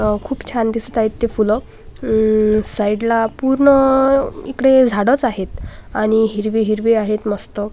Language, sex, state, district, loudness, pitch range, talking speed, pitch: Marathi, female, Maharashtra, Washim, -16 LUFS, 215-255 Hz, 125 wpm, 220 Hz